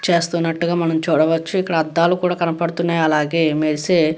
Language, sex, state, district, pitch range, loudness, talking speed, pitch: Telugu, female, Andhra Pradesh, Guntur, 160-170 Hz, -18 LUFS, 160 wpm, 170 Hz